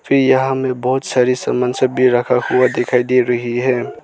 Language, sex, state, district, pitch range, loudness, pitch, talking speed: Hindi, male, Arunachal Pradesh, Lower Dibang Valley, 125-130 Hz, -16 LUFS, 125 Hz, 210 wpm